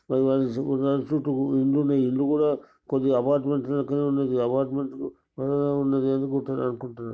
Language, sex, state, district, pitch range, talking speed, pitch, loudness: Telugu, male, Telangana, Nalgonda, 135-140 Hz, 125 wpm, 135 Hz, -25 LUFS